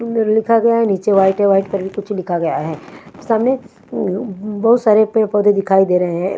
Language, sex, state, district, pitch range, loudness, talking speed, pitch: Hindi, female, Punjab, Fazilka, 195-225 Hz, -16 LUFS, 225 wpm, 205 Hz